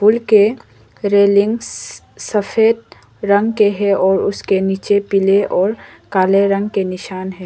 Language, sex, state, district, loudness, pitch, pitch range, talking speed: Hindi, female, Arunachal Pradesh, Lower Dibang Valley, -15 LUFS, 200 Hz, 195-210 Hz, 145 wpm